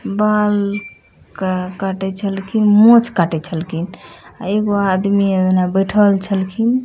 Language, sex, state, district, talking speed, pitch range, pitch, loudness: Maithili, female, Bihar, Madhepura, 140 wpm, 185-210 Hz, 195 Hz, -16 LUFS